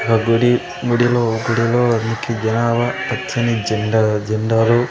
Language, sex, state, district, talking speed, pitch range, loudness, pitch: Telugu, male, Andhra Pradesh, Sri Satya Sai, 110 wpm, 110-120 Hz, -17 LUFS, 115 Hz